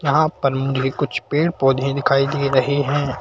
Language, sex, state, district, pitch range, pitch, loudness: Hindi, male, Madhya Pradesh, Bhopal, 135-145 Hz, 140 Hz, -19 LUFS